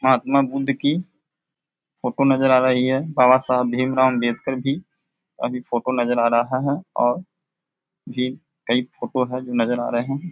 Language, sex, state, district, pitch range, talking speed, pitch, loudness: Hindi, male, Bihar, Sitamarhi, 125-150 Hz, 175 wpm, 130 Hz, -21 LUFS